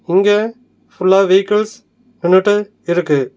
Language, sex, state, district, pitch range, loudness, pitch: Tamil, male, Tamil Nadu, Nilgiris, 185-215 Hz, -14 LUFS, 200 Hz